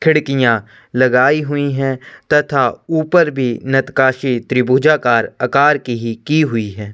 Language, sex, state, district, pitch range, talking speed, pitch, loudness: Hindi, male, Chhattisgarh, Korba, 120-150 Hz, 145 wpm, 130 Hz, -15 LUFS